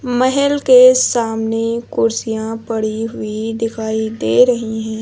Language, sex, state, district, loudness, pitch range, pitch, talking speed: Hindi, female, Uttar Pradesh, Lucknow, -15 LUFS, 220-245 Hz, 225 Hz, 120 wpm